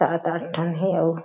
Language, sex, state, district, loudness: Chhattisgarhi, female, Chhattisgarh, Jashpur, -24 LUFS